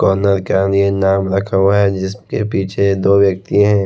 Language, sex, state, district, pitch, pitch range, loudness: Hindi, male, Haryana, Rohtak, 100 Hz, 95-100 Hz, -15 LUFS